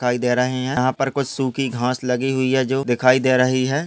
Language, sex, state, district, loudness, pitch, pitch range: Hindi, male, Maharashtra, Aurangabad, -19 LUFS, 130 Hz, 125-135 Hz